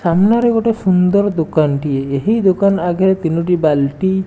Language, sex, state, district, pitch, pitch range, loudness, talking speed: Odia, male, Odisha, Nuapada, 185 Hz, 160-200 Hz, -15 LUFS, 140 wpm